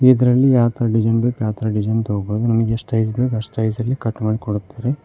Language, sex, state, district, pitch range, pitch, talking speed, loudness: Kannada, male, Karnataka, Koppal, 110-125 Hz, 115 Hz, 215 wpm, -19 LUFS